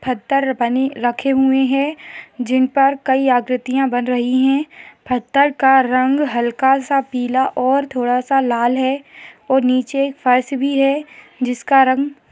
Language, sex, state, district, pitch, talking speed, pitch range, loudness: Hindi, female, Uttarakhand, Tehri Garhwal, 265 Hz, 145 wpm, 250-275 Hz, -17 LUFS